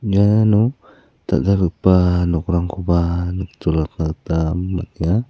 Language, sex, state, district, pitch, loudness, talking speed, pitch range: Garo, male, Meghalaya, South Garo Hills, 90 Hz, -18 LUFS, 70 wpm, 85-100 Hz